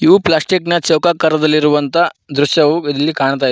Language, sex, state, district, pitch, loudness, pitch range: Kannada, male, Karnataka, Koppal, 155 Hz, -13 LUFS, 145-170 Hz